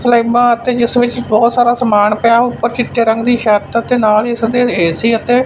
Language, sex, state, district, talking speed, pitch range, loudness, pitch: Punjabi, male, Punjab, Fazilka, 220 wpm, 225-245 Hz, -12 LUFS, 235 Hz